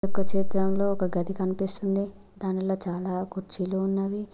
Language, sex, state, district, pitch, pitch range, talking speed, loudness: Telugu, female, Telangana, Mahabubabad, 195 Hz, 190-195 Hz, 125 wpm, -23 LUFS